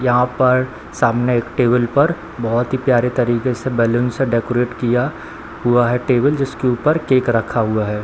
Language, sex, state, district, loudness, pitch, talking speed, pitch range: Hindi, male, Bihar, Samastipur, -17 LUFS, 125 Hz, 180 wpm, 120-130 Hz